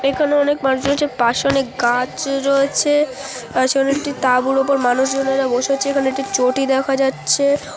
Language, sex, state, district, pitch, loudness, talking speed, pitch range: Bengali, female, West Bengal, North 24 Parganas, 270 Hz, -17 LUFS, 170 wpm, 260-275 Hz